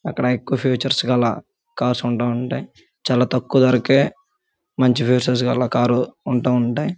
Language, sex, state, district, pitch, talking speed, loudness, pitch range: Telugu, male, Andhra Pradesh, Guntur, 125 Hz, 130 wpm, -19 LUFS, 125-135 Hz